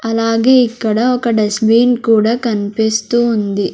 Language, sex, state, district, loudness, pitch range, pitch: Telugu, female, Andhra Pradesh, Sri Satya Sai, -13 LUFS, 220-240 Hz, 225 Hz